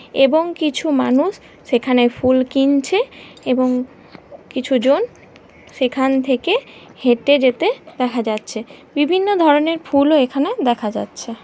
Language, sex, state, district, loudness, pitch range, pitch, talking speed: Bengali, female, West Bengal, North 24 Parganas, -17 LUFS, 250-305 Hz, 270 Hz, 115 wpm